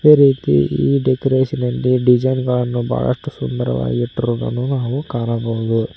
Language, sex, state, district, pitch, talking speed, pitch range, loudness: Kannada, male, Karnataka, Koppal, 125 Hz, 120 wpm, 115-130 Hz, -17 LUFS